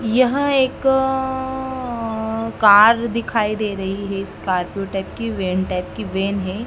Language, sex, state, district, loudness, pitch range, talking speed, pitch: Hindi, female, Madhya Pradesh, Dhar, -19 LUFS, 195-255 Hz, 155 wpm, 220 Hz